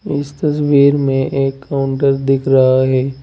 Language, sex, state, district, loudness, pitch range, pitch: Hindi, male, Uttar Pradesh, Saharanpur, -14 LUFS, 135-140 Hz, 135 Hz